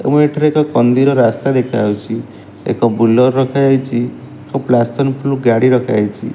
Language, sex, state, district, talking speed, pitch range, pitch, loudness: Odia, male, Odisha, Malkangiri, 140 wpm, 115-135 Hz, 125 Hz, -14 LUFS